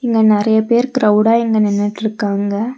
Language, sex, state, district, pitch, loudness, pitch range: Tamil, female, Tamil Nadu, Nilgiris, 220 Hz, -14 LUFS, 210-230 Hz